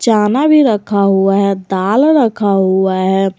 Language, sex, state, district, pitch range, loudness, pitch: Hindi, female, Jharkhand, Garhwa, 190-225 Hz, -12 LUFS, 200 Hz